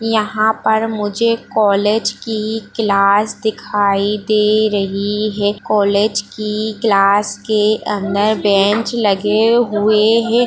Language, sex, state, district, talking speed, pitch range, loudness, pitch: Hindi, female, Bihar, Darbhanga, 110 wpm, 205-220 Hz, -15 LUFS, 210 Hz